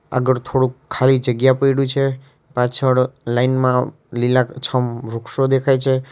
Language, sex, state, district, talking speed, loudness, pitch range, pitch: Gujarati, male, Gujarat, Valsad, 135 wpm, -18 LUFS, 125-135 Hz, 130 Hz